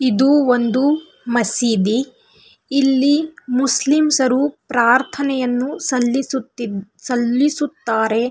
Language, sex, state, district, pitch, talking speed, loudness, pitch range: Kannada, female, Karnataka, Belgaum, 255 Hz, 65 wpm, -17 LUFS, 240-280 Hz